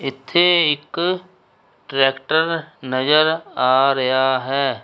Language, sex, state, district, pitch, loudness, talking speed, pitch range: Punjabi, male, Punjab, Kapurthala, 140 Hz, -18 LUFS, 100 wpm, 130-165 Hz